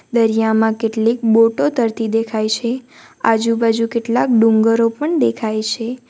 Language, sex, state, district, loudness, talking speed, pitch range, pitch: Gujarati, female, Gujarat, Valsad, -16 LUFS, 120 wpm, 225-235 Hz, 230 Hz